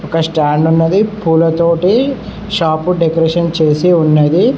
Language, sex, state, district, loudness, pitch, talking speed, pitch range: Telugu, male, Telangana, Mahabubabad, -12 LUFS, 165 Hz, 120 wpm, 160-180 Hz